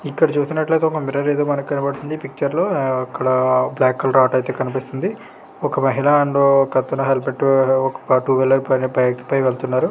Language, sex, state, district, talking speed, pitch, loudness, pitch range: Telugu, male, Andhra Pradesh, Krishna, 170 wpm, 135 Hz, -18 LUFS, 130-145 Hz